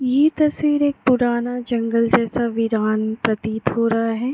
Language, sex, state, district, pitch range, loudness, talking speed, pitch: Hindi, female, Jharkhand, Jamtara, 225-260 Hz, -19 LUFS, 150 wpm, 235 Hz